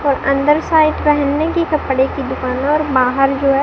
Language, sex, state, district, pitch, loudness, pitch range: Hindi, female, Rajasthan, Bikaner, 280 Hz, -15 LUFS, 275-305 Hz